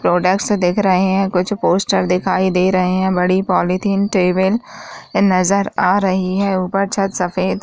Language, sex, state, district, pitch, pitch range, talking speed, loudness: Hindi, female, Uttar Pradesh, Varanasi, 190 Hz, 185-195 Hz, 175 wpm, -16 LUFS